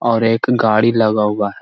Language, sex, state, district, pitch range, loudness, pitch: Hindi, male, Bihar, Jahanabad, 105-115 Hz, -15 LUFS, 110 Hz